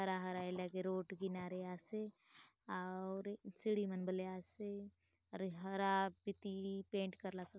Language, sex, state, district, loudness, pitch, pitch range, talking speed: Halbi, female, Chhattisgarh, Bastar, -44 LUFS, 190 Hz, 185-200 Hz, 135 wpm